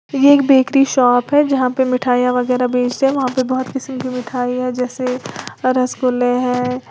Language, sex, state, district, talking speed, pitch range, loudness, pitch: Hindi, female, Uttar Pradesh, Lalitpur, 190 wpm, 250-265 Hz, -16 LUFS, 255 Hz